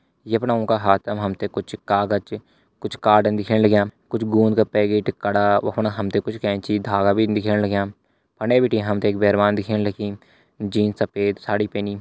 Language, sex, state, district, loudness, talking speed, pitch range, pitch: Hindi, male, Uttarakhand, Uttarkashi, -21 LUFS, 170 wpm, 100-110 Hz, 105 Hz